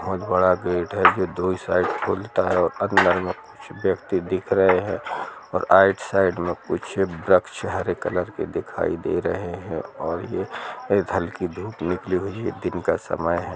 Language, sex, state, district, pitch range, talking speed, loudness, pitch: Hindi, male, Jharkhand, Jamtara, 90-95 Hz, 175 wpm, -23 LUFS, 90 Hz